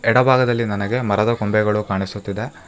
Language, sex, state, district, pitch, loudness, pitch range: Kannada, male, Karnataka, Bangalore, 105 Hz, -19 LUFS, 100-120 Hz